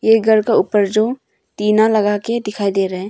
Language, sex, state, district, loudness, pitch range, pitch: Hindi, female, Arunachal Pradesh, Longding, -16 LUFS, 205-220 Hz, 215 Hz